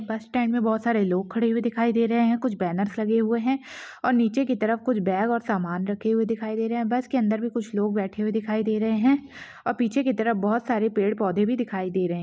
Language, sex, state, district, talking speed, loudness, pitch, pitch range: Hindi, female, Chhattisgarh, Rajnandgaon, 270 wpm, -24 LUFS, 225 Hz, 210-235 Hz